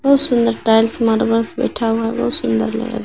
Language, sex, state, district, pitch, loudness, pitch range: Hindi, female, Bihar, Katihar, 225 Hz, -16 LUFS, 220-235 Hz